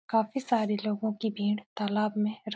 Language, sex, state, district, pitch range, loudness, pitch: Hindi, female, Bihar, Supaul, 210-220 Hz, -30 LUFS, 215 Hz